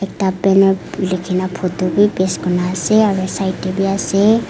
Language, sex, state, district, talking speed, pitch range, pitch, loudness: Nagamese, female, Nagaland, Kohima, 175 wpm, 185-195 Hz, 190 Hz, -16 LUFS